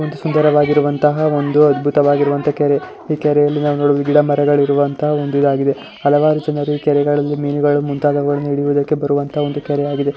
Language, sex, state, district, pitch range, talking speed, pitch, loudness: Kannada, female, Karnataka, Chamarajanagar, 145-150 Hz, 135 wpm, 145 Hz, -15 LUFS